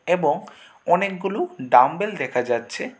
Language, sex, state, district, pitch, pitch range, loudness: Bengali, male, Tripura, West Tripura, 180 Hz, 125-200 Hz, -21 LUFS